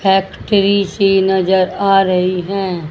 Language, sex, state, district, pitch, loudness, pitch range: Hindi, female, Haryana, Jhajjar, 190 Hz, -14 LUFS, 185-195 Hz